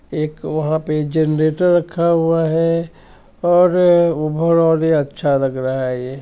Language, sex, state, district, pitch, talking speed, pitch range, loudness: Hindi, male, Bihar, Sitamarhi, 160 Hz, 155 wpm, 155-170 Hz, -16 LUFS